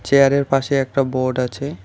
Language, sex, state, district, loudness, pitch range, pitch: Bengali, male, West Bengal, Alipurduar, -18 LUFS, 130-140 Hz, 135 Hz